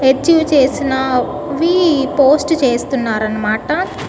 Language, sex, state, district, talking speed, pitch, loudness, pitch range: Telugu, female, Andhra Pradesh, Guntur, 75 wpm, 270 Hz, -14 LUFS, 250-300 Hz